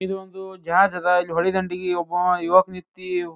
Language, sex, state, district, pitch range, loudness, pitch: Kannada, male, Karnataka, Bijapur, 180-190 Hz, -21 LUFS, 180 Hz